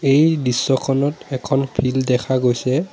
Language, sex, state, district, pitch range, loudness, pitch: Assamese, male, Assam, Sonitpur, 130-140 Hz, -19 LUFS, 130 Hz